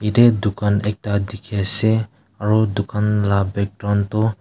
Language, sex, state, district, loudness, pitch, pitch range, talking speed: Nagamese, male, Nagaland, Kohima, -19 LUFS, 105 Hz, 100-110 Hz, 135 wpm